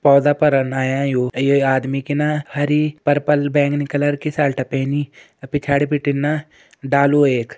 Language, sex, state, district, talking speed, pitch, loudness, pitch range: Garhwali, male, Uttarakhand, Uttarkashi, 140 wpm, 145 Hz, -18 LUFS, 135-145 Hz